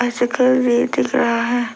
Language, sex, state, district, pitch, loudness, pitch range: Hindi, female, Arunachal Pradesh, Lower Dibang Valley, 245 Hz, -17 LUFS, 240-245 Hz